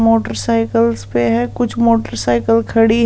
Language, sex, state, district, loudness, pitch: Hindi, female, Punjab, Pathankot, -15 LUFS, 225 Hz